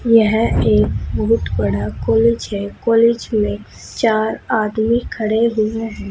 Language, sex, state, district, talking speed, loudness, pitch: Hindi, female, Uttar Pradesh, Saharanpur, 130 wpm, -17 LUFS, 215 Hz